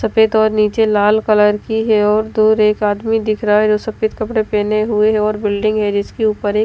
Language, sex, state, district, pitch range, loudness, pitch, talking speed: Hindi, female, Delhi, New Delhi, 210-220 Hz, -15 LUFS, 215 Hz, 235 wpm